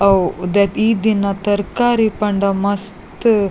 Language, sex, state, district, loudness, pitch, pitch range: Tulu, female, Karnataka, Dakshina Kannada, -16 LUFS, 200 Hz, 195-215 Hz